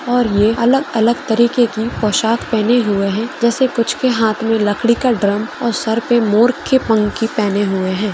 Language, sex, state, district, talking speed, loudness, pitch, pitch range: Hindi, female, Chhattisgarh, Korba, 200 wpm, -15 LUFS, 225 Hz, 215-240 Hz